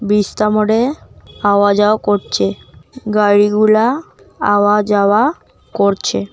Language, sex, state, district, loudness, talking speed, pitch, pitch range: Bengali, female, Assam, Kamrup Metropolitan, -14 LUFS, 95 wpm, 205 Hz, 200-215 Hz